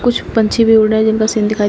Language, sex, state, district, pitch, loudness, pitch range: Hindi, female, Uttar Pradesh, Shamli, 220 Hz, -13 LUFS, 215-225 Hz